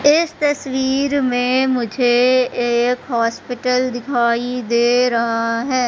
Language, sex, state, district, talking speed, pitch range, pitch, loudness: Hindi, female, Madhya Pradesh, Katni, 100 wpm, 240-260 Hz, 250 Hz, -17 LUFS